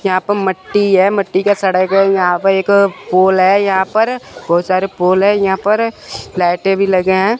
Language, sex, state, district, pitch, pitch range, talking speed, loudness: Hindi, male, Chandigarh, Chandigarh, 190 Hz, 185-200 Hz, 205 wpm, -13 LUFS